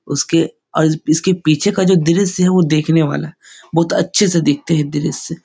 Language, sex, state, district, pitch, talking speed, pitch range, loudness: Hindi, male, Bihar, Jahanabad, 165 Hz, 200 wpm, 155-180 Hz, -15 LUFS